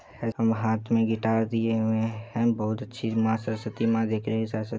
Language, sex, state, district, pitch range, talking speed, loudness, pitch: Hindi, male, Bihar, Supaul, 110-115 Hz, 185 wpm, -27 LUFS, 110 Hz